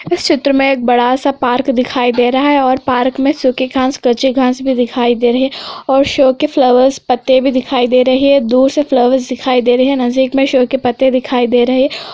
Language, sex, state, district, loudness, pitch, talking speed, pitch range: Hindi, female, Andhra Pradesh, Anantapur, -12 LUFS, 260 Hz, 245 wpm, 250-270 Hz